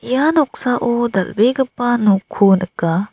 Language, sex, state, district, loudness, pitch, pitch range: Garo, female, Meghalaya, South Garo Hills, -16 LUFS, 235 Hz, 195-250 Hz